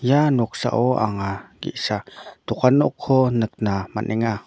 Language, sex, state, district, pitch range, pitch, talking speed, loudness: Garo, male, Meghalaya, North Garo Hills, 105-130 Hz, 115 Hz, 105 wpm, -21 LUFS